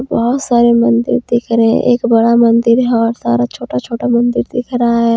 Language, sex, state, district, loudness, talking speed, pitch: Hindi, female, Jharkhand, Deoghar, -13 LUFS, 210 wpm, 235 Hz